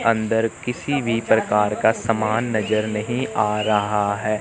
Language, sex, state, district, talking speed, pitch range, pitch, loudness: Hindi, male, Chandigarh, Chandigarh, 150 wpm, 105-115 Hz, 110 Hz, -21 LUFS